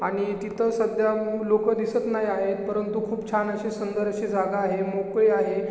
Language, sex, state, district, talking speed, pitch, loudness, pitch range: Marathi, male, Maharashtra, Chandrapur, 180 wpm, 210 Hz, -25 LUFS, 200-220 Hz